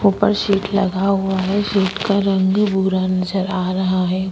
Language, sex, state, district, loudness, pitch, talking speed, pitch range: Hindi, female, Goa, North and South Goa, -18 LUFS, 195 Hz, 180 wpm, 185-200 Hz